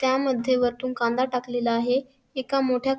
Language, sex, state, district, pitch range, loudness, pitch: Marathi, female, Maharashtra, Sindhudurg, 245-265 Hz, -25 LUFS, 255 Hz